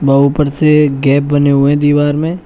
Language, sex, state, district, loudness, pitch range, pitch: Hindi, male, Uttar Pradesh, Shamli, -11 LUFS, 140-150 Hz, 145 Hz